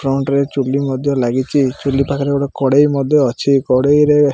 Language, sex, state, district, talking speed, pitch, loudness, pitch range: Odia, male, Odisha, Malkangiri, 195 wpm, 140 Hz, -15 LUFS, 135-140 Hz